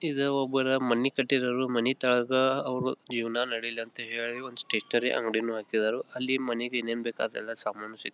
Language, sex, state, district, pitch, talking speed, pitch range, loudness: Kannada, male, Karnataka, Belgaum, 120 Hz, 175 wpm, 115-130 Hz, -29 LUFS